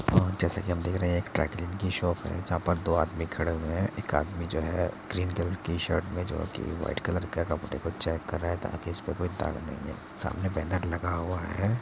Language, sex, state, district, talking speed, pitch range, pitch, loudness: Hindi, male, Uttar Pradesh, Muzaffarnagar, 260 wpm, 85-95 Hz, 90 Hz, -31 LUFS